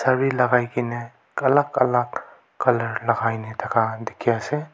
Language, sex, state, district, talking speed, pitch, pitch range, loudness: Nagamese, male, Nagaland, Kohima, 125 wpm, 120 Hz, 115-130 Hz, -22 LUFS